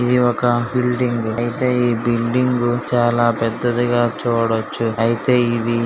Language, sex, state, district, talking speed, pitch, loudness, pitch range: Telugu, male, Andhra Pradesh, Srikakulam, 115 wpm, 120 Hz, -18 LUFS, 115-125 Hz